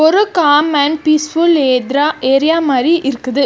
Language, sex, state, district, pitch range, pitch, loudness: Tamil, female, Karnataka, Bangalore, 275-320 Hz, 295 Hz, -12 LUFS